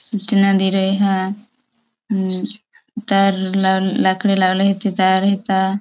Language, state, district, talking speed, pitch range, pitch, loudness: Bhili, Maharashtra, Dhule, 145 wpm, 190-210 Hz, 195 Hz, -17 LUFS